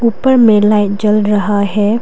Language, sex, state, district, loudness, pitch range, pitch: Hindi, female, Arunachal Pradesh, Lower Dibang Valley, -11 LUFS, 205-225 Hz, 210 Hz